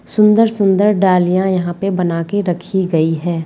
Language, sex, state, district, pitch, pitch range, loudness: Hindi, female, Bihar, Saran, 185 Hz, 175-200 Hz, -15 LUFS